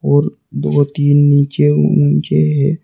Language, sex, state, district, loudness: Hindi, male, Uttar Pradesh, Saharanpur, -13 LUFS